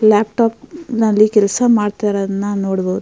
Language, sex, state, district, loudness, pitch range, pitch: Kannada, female, Karnataka, Mysore, -15 LUFS, 200-230 Hz, 210 Hz